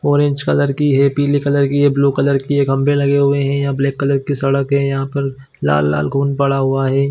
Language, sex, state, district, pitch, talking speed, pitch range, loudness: Hindi, male, Chhattisgarh, Bilaspur, 140 Hz, 245 wpm, 135-140 Hz, -16 LUFS